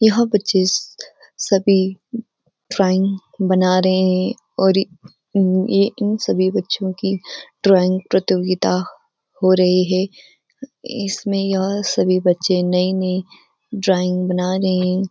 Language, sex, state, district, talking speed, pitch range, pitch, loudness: Hindi, female, Uttarakhand, Uttarkashi, 105 wpm, 185-200 Hz, 190 Hz, -18 LUFS